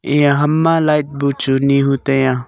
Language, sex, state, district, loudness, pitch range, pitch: Wancho, male, Arunachal Pradesh, Longding, -15 LUFS, 135-150 Hz, 140 Hz